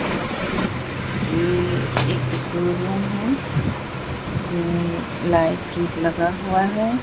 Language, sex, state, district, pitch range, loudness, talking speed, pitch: Hindi, female, Bihar, Katihar, 165-175 Hz, -22 LUFS, 70 wpm, 170 Hz